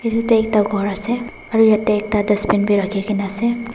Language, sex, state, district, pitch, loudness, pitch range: Nagamese, female, Nagaland, Dimapur, 210 Hz, -18 LUFS, 205-230 Hz